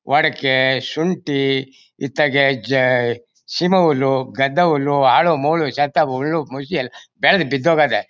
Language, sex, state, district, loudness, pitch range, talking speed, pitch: Kannada, male, Karnataka, Mysore, -17 LUFS, 135-160 Hz, 110 wpm, 140 Hz